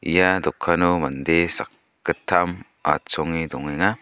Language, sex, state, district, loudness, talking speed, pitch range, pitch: Garo, male, Meghalaya, West Garo Hills, -22 LUFS, 90 wpm, 80-90 Hz, 85 Hz